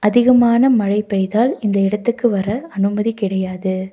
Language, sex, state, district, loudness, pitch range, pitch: Tamil, female, Tamil Nadu, Nilgiris, -17 LUFS, 195-235 Hz, 210 Hz